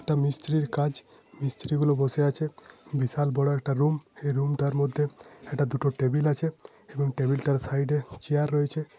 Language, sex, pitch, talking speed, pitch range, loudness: Bengali, male, 145 Hz, 200 wpm, 140-150 Hz, -27 LUFS